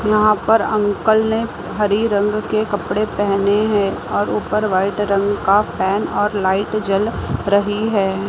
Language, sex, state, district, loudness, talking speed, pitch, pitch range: Hindi, female, Maharashtra, Mumbai Suburban, -17 LUFS, 150 wpm, 205 Hz, 200-215 Hz